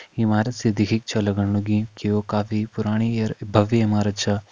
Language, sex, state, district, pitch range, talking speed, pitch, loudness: Hindi, male, Uttarakhand, Tehri Garhwal, 105-110 Hz, 185 wpm, 105 Hz, -22 LUFS